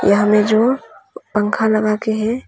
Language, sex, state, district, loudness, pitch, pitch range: Hindi, female, Arunachal Pradesh, Papum Pare, -16 LUFS, 215 Hz, 210-220 Hz